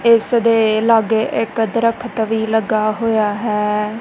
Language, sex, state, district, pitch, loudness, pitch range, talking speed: Punjabi, female, Punjab, Kapurthala, 220 Hz, -16 LUFS, 215-230 Hz, 120 wpm